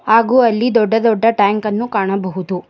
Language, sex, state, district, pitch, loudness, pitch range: Kannada, female, Karnataka, Bangalore, 220 Hz, -15 LUFS, 200-230 Hz